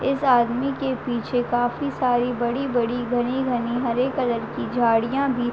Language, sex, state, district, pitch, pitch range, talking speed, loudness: Hindi, female, Uttar Pradesh, Deoria, 245 Hz, 240-265 Hz, 150 wpm, -23 LUFS